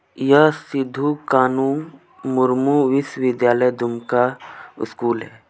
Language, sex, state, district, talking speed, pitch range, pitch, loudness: Hindi, male, Jharkhand, Deoghar, 100 wpm, 120-140 Hz, 130 Hz, -19 LUFS